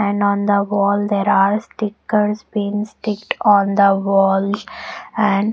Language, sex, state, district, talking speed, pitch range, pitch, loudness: English, female, Punjab, Pathankot, 140 wpm, 200-210 Hz, 205 Hz, -17 LUFS